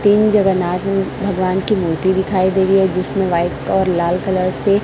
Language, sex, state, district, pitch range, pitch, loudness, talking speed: Hindi, female, Chhattisgarh, Raipur, 185-195 Hz, 190 Hz, -16 LUFS, 200 wpm